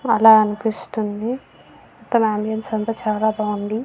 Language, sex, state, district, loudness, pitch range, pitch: Telugu, female, Andhra Pradesh, Visakhapatnam, -19 LUFS, 215-225 Hz, 220 Hz